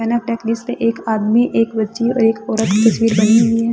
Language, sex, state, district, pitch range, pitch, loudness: Hindi, female, Delhi, New Delhi, 220-230 Hz, 230 Hz, -16 LUFS